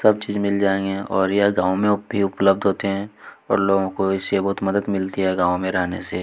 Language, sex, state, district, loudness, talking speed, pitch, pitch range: Hindi, male, Chhattisgarh, Kabirdham, -21 LUFS, 230 wpm, 100 Hz, 95-100 Hz